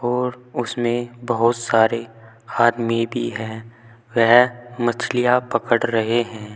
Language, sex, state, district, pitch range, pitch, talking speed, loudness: Hindi, male, Uttar Pradesh, Saharanpur, 115-120 Hz, 120 Hz, 110 wpm, -20 LUFS